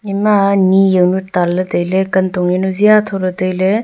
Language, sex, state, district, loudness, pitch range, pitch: Wancho, female, Arunachal Pradesh, Longding, -13 LUFS, 185-200 Hz, 190 Hz